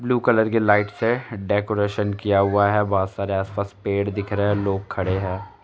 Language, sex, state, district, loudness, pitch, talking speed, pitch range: Hindi, male, Uttar Pradesh, Jalaun, -22 LUFS, 100 Hz, 215 wpm, 100-105 Hz